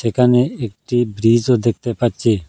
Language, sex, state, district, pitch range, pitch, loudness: Bengali, male, Assam, Hailakandi, 115-125 Hz, 120 Hz, -17 LUFS